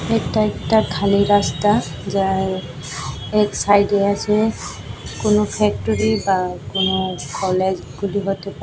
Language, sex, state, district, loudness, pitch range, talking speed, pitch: Bengali, female, Tripura, West Tripura, -19 LUFS, 185-205 Hz, 105 wpm, 195 Hz